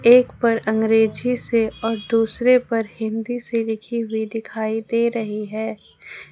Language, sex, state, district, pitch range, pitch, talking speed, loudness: Hindi, female, Jharkhand, Ranchi, 220-235 Hz, 225 Hz, 140 wpm, -21 LUFS